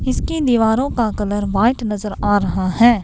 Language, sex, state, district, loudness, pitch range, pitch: Hindi, female, Himachal Pradesh, Shimla, -17 LUFS, 205-235 Hz, 215 Hz